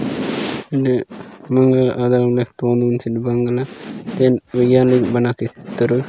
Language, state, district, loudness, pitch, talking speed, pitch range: Gondi, Chhattisgarh, Sukma, -17 LUFS, 125 Hz, 130 wpm, 120-130 Hz